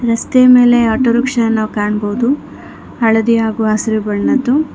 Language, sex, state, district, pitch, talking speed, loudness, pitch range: Kannada, female, Karnataka, Bangalore, 230 Hz, 100 wpm, -13 LUFS, 220-250 Hz